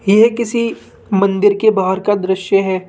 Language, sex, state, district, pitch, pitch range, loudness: Hindi, female, Rajasthan, Jaipur, 195 Hz, 190-220 Hz, -15 LUFS